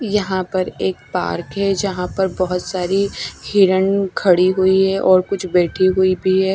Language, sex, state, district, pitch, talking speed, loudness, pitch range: Hindi, female, Chhattisgarh, Raipur, 190 Hz, 175 wpm, -17 LUFS, 185-195 Hz